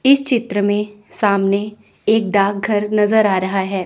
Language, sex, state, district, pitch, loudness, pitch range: Hindi, female, Chandigarh, Chandigarh, 210 Hz, -17 LUFS, 200-215 Hz